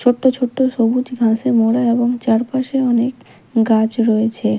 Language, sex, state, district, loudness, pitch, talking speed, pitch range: Bengali, female, Odisha, Malkangiri, -16 LUFS, 240 Hz, 130 wpm, 225-250 Hz